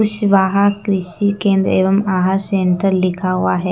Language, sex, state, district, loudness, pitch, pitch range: Hindi, female, Bihar, Kaimur, -15 LUFS, 195 Hz, 185-200 Hz